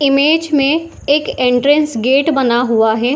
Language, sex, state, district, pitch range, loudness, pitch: Hindi, female, Bihar, Saharsa, 245-295 Hz, -13 LUFS, 275 Hz